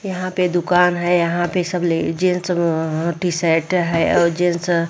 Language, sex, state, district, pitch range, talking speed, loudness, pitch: Hindi, female, Bihar, Vaishali, 170-180 Hz, 170 wpm, -18 LUFS, 175 Hz